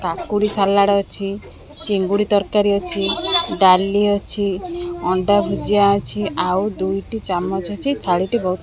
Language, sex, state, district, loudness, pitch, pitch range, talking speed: Odia, female, Odisha, Khordha, -18 LUFS, 200 Hz, 190-210 Hz, 125 wpm